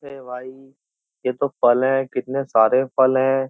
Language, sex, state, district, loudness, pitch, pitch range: Hindi, male, Uttar Pradesh, Jyotiba Phule Nagar, -19 LUFS, 130 Hz, 125-135 Hz